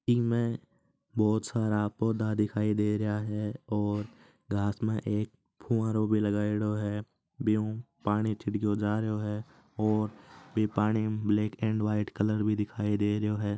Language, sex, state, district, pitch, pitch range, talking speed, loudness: Marwari, male, Rajasthan, Nagaur, 105 Hz, 105-110 Hz, 140 wpm, -30 LUFS